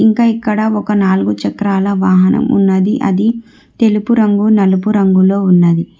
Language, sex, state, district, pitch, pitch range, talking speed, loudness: Telugu, female, Telangana, Hyderabad, 200 Hz, 190-220 Hz, 130 wpm, -12 LUFS